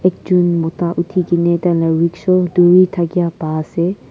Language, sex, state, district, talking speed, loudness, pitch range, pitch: Nagamese, female, Nagaland, Kohima, 160 wpm, -15 LUFS, 170-180 Hz, 175 Hz